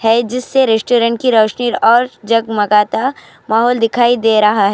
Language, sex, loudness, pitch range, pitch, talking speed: Urdu, female, -13 LUFS, 220-240 Hz, 230 Hz, 175 wpm